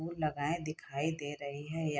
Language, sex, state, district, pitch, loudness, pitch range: Hindi, female, Bihar, Saharsa, 155 Hz, -37 LUFS, 145-160 Hz